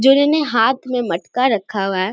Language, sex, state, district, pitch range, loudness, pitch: Hindi, female, Bihar, Samastipur, 205-270 Hz, -17 LUFS, 250 Hz